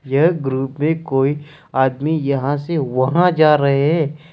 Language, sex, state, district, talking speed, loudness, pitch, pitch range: Hindi, male, Jharkhand, Deoghar, 150 wpm, -17 LUFS, 150 Hz, 135-160 Hz